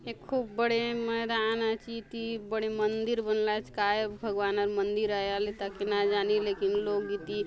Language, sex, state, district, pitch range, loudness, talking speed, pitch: Halbi, female, Chhattisgarh, Bastar, 205-225 Hz, -30 LUFS, 175 wpm, 215 Hz